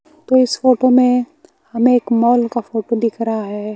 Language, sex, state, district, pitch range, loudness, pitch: Hindi, male, Bihar, West Champaran, 230-255 Hz, -15 LUFS, 240 Hz